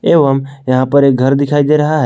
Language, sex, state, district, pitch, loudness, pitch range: Hindi, male, Jharkhand, Palamu, 140 Hz, -12 LUFS, 135-150 Hz